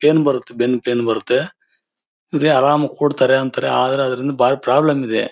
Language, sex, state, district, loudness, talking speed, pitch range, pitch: Kannada, male, Karnataka, Bellary, -17 LUFS, 160 wpm, 125-145 Hz, 135 Hz